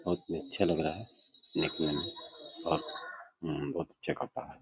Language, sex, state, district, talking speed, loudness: Hindi, male, Uttar Pradesh, Deoria, 195 wpm, -35 LUFS